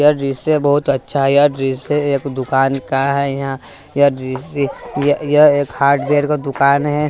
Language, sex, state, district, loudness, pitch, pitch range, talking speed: Hindi, male, Bihar, West Champaran, -16 LUFS, 140 Hz, 135-145 Hz, 160 wpm